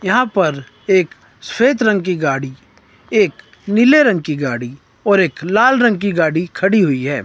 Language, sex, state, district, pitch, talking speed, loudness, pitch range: Hindi, male, Himachal Pradesh, Shimla, 190 Hz, 175 wpm, -15 LUFS, 145-215 Hz